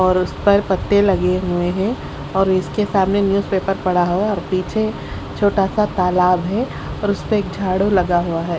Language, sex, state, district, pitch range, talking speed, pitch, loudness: Hindi, female, Haryana, Charkhi Dadri, 180-200 Hz, 165 wpm, 190 Hz, -18 LUFS